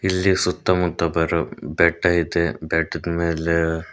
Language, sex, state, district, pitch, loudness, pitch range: Kannada, male, Karnataka, Koppal, 85 Hz, -21 LUFS, 80-85 Hz